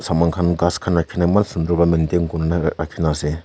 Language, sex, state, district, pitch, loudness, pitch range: Nagamese, male, Nagaland, Kohima, 85 Hz, -19 LUFS, 80-85 Hz